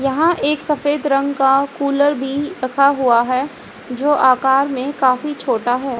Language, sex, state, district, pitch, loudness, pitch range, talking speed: Hindi, female, Haryana, Charkhi Dadri, 275 Hz, -16 LUFS, 260-290 Hz, 160 wpm